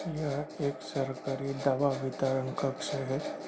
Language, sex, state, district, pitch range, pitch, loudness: Hindi, male, Bihar, Gaya, 135-145 Hz, 135 Hz, -32 LUFS